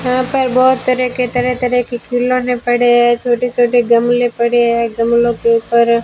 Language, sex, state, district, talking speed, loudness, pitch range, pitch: Hindi, female, Rajasthan, Bikaner, 200 wpm, -13 LUFS, 235-250 Hz, 245 Hz